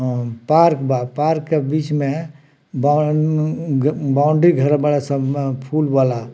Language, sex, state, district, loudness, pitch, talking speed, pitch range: Bhojpuri, male, Bihar, Muzaffarpur, -18 LUFS, 145 Hz, 140 wpm, 135-155 Hz